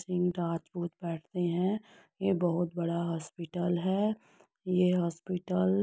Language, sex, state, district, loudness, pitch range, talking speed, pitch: Hindi, female, Uttar Pradesh, Etah, -32 LUFS, 170-190 Hz, 115 wpm, 180 Hz